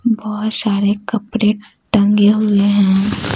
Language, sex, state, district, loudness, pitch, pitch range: Hindi, female, Bihar, Patna, -15 LUFS, 210 Hz, 200-215 Hz